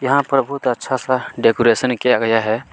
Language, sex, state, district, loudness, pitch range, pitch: Hindi, male, Chhattisgarh, Kabirdham, -17 LUFS, 115-135 Hz, 125 Hz